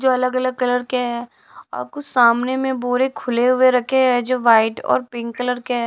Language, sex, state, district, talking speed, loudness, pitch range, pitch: Hindi, female, Odisha, Sambalpur, 215 wpm, -18 LUFS, 240-255 Hz, 250 Hz